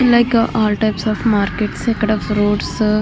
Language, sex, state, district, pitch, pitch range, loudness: Telugu, female, Andhra Pradesh, Krishna, 215 Hz, 210-225 Hz, -16 LUFS